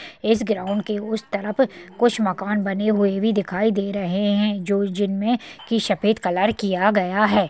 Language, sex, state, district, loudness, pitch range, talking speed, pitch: Hindi, female, Uttar Pradesh, Hamirpur, -21 LUFS, 200-215 Hz, 175 wpm, 205 Hz